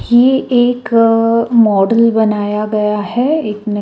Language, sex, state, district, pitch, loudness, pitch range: Hindi, female, Chhattisgarh, Raipur, 225 Hz, -12 LUFS, 210-240 Hz